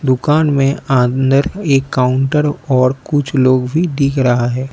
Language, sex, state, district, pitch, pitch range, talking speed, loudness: Hindi, male, Arunachal Pradesh, Lower Dibang Valley, 135 Hz, 130-145 Hz, 150 wpm, -14 LUFS